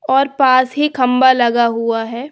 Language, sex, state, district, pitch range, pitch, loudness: Hindi, female, Bihar, Saharsa, 235-270 Hz, 255 Hz, -14 LUFS